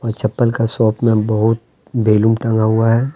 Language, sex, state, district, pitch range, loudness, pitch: Hindi, male, Jharkhand, Deoghar, 110-115 Hz, -16 LUFS, 115 Hz